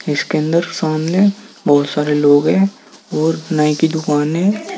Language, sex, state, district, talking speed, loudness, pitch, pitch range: Hindi, male, Uttar Pradesh, Saharanpur, 150 wpm, -16 LUFS, 160 Hz, 150-180 Hz